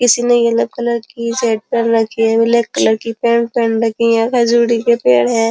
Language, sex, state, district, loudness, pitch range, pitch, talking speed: Hindi, female, Uttar Pradesh, Jyotiba Phule Nagar, -14 LUFS, 225-235 Hz, 230 Hz, 205 wpm